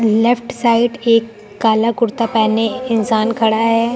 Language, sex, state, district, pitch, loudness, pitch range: Hindi, female, Uttar Pradesh, Lucknow, 230 Hz, -15 LUFS, 220-235 Hz